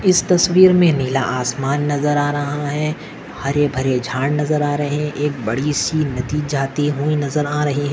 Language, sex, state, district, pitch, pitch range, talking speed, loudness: Hindi, male, Maharashtra, Dhule, 145 Hz, 140-150 Hz, 175 wpm, -18 LUFS